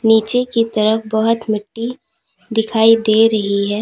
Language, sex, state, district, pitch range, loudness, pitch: Hindi, female, Uttar Pradesh, Lalitpur, 215-230 Hz, -15 LUFS, 225 Hz